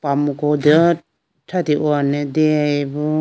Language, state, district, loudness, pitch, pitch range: Idu Mishmi, Arunachal Pradesh, Lower Dibang Valley, -17 LUFS, 150 Hz, 145-155 Hz